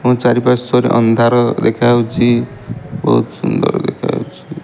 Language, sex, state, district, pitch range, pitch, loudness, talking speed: Odia, male, Odisha, Malkangiri, 115-125 Hz, 120 Hz, -14 LUFS, 115 wpm